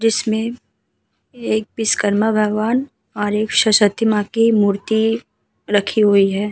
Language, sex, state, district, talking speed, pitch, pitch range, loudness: Hindi, female, Bihar, Vaishali, 130 wpm, 220 Hz, 210-225 Hz, -17 LUFS